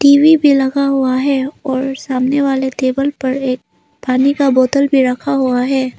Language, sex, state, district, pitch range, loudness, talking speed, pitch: Hindi, female, Arunachal Pradesh, Lower Dibang Valley, 260-280 Hz, -14 LUFS, 180 wpm, 270 Hz